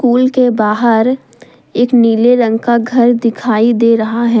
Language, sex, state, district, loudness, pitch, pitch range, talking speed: Hindi, female, Jharkhand, Deoghar, -11 LUFS, 235 Hz, 225-245 Hz, 165 wpm